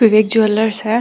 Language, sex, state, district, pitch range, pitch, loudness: Marwari, female, Rajasthan, Nagaur, 215-225 Hz, 220 Hz, -14 LUFS